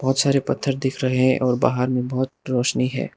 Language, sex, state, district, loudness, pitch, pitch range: Hindi, male, Arunachal Pradesh, Lower Dibang Valley, -21 LUFS, 130 Hz, 125-135 Hz